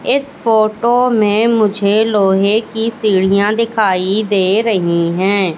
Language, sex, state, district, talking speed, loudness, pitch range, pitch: Hindi, female, Madhya Pradesh, Katni, 120 wpm, -14 LUFS, 195-225 Hz, 210 Hz